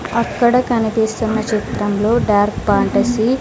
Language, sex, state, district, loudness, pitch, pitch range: Telugu, female, Andhra Pradesh, Sri Satya Sai, -16 LUFS, 225 Hz, 215-235 Hz